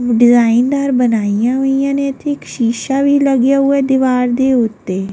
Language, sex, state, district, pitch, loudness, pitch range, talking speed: Punjabi, female, Delhi, New Delhi, 260 Hz, -13 LUFS, 235-275 Hz, 165 wpm